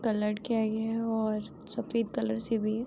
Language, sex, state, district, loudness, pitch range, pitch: Hindi, female, Uttar Pradesh, Hamirpur, -31 LUFS, 210-225 Hz, 220 Hz